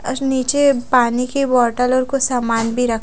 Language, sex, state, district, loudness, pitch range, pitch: Hindi, female, Odisha, Khordha, -17 LUFS, 240-265 Hz, 250 Hz